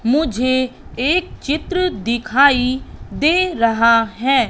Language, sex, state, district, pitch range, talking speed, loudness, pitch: Hindi, female, Madhya Pradesh, Katni, 235-305 Hz, 95 wpm, -17 LUFS, 260 Hz